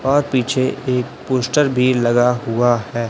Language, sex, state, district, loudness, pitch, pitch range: Hindi, male, Chhattisgarh, Raipur, -17 LUFS, 125 Hz, 120-130 Hz